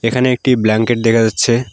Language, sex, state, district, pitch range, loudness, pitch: Bengali, male, West Bengal, Alipurduar, 115-125 Hz, -14 LUFS, 115 Hz